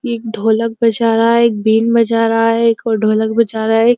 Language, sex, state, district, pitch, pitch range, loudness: Hindi, female, Uttar Pradesh, Jyotiba Phule Nagar, 225 Hz, 220-230 Hz, -14 LUFS